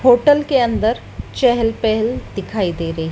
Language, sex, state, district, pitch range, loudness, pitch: Hindi, female, Madhya Pradesh, Dhar, 215-250 Hz, -17 LUFS, 230 Hz